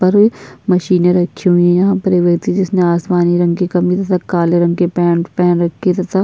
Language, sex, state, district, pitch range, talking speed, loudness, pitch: Hindi, female, Bihar, Kishanganj, 175-185 Hz, 220 wpm, -14 LUFS, 180 Hz